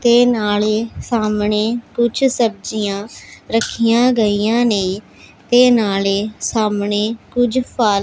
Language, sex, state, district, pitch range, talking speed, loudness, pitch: Punjabi, female, Punjab, Pathankot, 210-240 Hz, 105 wpm, -17 LUFS, 220 Hz